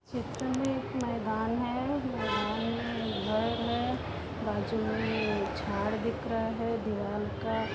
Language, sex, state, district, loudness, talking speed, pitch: Hindi, female, Uttar Pradesh, Etah, -32 LUFS, 140 wpm, 220 Hz